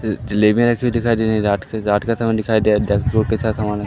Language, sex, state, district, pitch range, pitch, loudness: Hindi, male, Madhya Pradesh, Katni, 105-115 Hz, 110 Hz, -18 LUFS